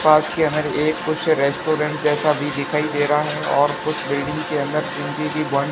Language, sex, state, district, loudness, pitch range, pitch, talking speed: Hindi, male, Rajasthan, Barmer, -20 LUFS, 145-155 Hz, 150 Hz, 210 wpm